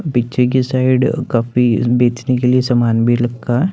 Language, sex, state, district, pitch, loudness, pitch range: Hindi, male, Chandigarh, Chandigarh, 125 Hz, -15 LUFS, 120-130 Hz